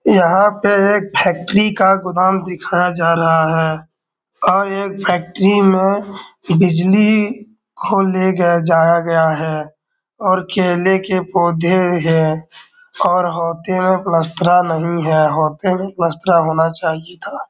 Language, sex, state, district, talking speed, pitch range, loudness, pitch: Hindi, male, Bihar, Darbhanga, 135 wpm, 165-195 Hz, -15 LUFS, 180 Hz